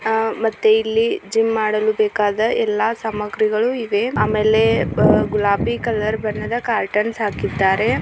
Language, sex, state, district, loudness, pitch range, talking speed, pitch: Kannada, female, Karnataka, Belgaum, -18 LUFS, 210-230 Hz, 80 wpm, 220 Hz